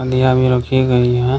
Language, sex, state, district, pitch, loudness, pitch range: Hindi, male, Bihar, Kishanganj, 130 Hz, -14 LUFS, 125-130 Hz